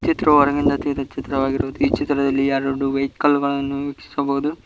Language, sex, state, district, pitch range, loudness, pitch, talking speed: Kannada, male, Karnataka, Koppal, 135-145 Hz, -20 LUFS, 140 Hz, 140 wpm